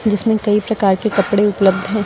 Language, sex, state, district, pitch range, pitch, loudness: Hindi, female, Uttar Pradesh, Lucknow, 200-215 Hz, 205 Hz, -15 LUFS